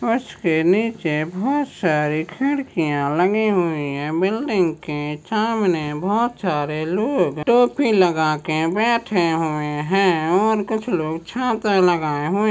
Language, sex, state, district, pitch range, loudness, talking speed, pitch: Hindi, male, Maharashtra, Sindhudurg, 155-220 Hz, -20 LUFS, 125 wpm, 180 Hz